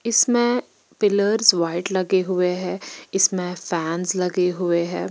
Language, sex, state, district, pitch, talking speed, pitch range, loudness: Hindi, female, Bihar, Patna, 185 Hz, 130 wpm, 180-200 Hz, -21 LUFS